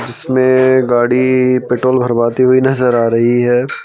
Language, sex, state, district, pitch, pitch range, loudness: Hindi, male, Madhya Pradesh, Bhopal, 125 Hz, 120-130 Hz, -12 LUFS